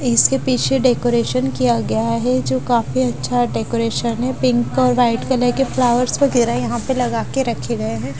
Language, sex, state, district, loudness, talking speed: Hindi, female, Punjab, Fazilka, -18 LUFS, 185 wpm